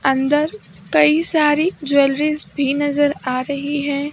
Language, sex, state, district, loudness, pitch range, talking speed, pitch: Hindi, male, Maharashtra, Mumbai Suburban, -17 LUFS, 280-300 Hz, 130 wpm, 290 Hz